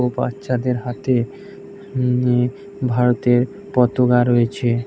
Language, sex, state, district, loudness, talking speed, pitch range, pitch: Bengali, male, West Bengal, Jhargram, -19 LUFS, 110 wpm, 125-135 Hz, 125 Hz